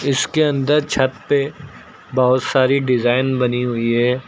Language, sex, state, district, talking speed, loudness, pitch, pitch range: Hindi, male, Uttar Pradesh, Lucknow, 140 wpm, -17 LUFS, 130 Hz, 125-140 Hz